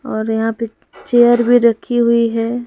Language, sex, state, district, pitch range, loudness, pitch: Hindi, female, Madhya Pradesh, Umaria, 225-240 Hz, -14 LUFS, 235 Hz